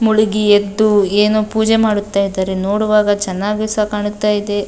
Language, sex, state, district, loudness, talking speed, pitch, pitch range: Kannada, female, Karnataka, Dakshina Kannada, -15 LUFS, 140 wpm, 210 Hz, 205-215 Hz